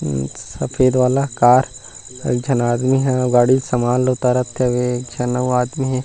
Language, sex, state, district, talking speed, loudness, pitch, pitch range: Chhattisgarhi, male, Chhattisgarh, Rajnandgaon, 190 wpm, -17 LUFS, 125 Hz, 125-130 Hz